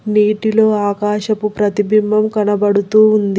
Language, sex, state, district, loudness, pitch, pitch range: Telugu, male, Telangana, Hyderabad, -14 LUFS, 210 Hz, 205-215 Hz